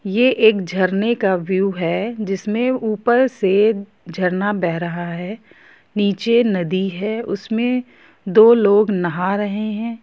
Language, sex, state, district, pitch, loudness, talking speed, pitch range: Hindi, female, Jharkhand, Sahebganj, 205 Hz, -18 LUFS, 130 wpm, 190-225 Hz